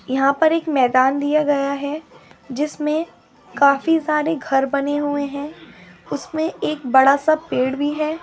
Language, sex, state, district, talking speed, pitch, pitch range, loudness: Angika, female, Bihar, Madhepura, 145 wpm, 290 Hz, 275-310 Hz, -19 LUFS